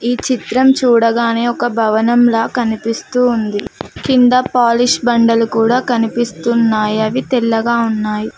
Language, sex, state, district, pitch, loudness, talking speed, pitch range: Telugu, female, Telangana, Mahabubabad, 235 Hz, -14 LUFS, 105 wpm, 225-245 Hz